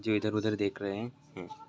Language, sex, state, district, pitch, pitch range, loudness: Hindi, male, Uttar Pradesh, Gorakhpur, 110 Hz, 100-120 Hz, -33 LUFS